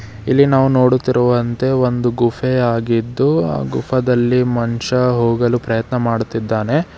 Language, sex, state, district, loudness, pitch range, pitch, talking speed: Kannada, male, Karnataka, Bidar, -16 LUFS, 115-125 Hz, 120 Hz, 110 wpm